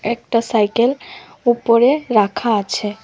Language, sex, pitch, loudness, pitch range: Bengali, female, 230 Hz, -17 LUFS, 215-240 Hz